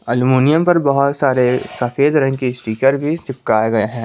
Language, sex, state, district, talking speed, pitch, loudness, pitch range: Hindi, male, Jharkhand, Garhwa, 175 wpm, 130 Hz, -16 LUFS, 125-140 Hz